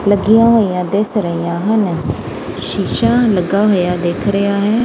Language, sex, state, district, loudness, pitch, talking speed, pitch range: Punjabi, female, Punjab, Kapurthala, -15 LUFS, 200 Hz, 135 wpm, 180-215 Hz